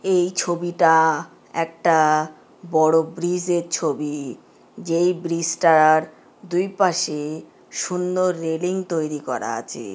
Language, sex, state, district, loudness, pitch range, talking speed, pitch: Bengali, female, West Bengal, Jhargram, -21 LUFS, 155-180 Hz, 90 wpm, 165 Hz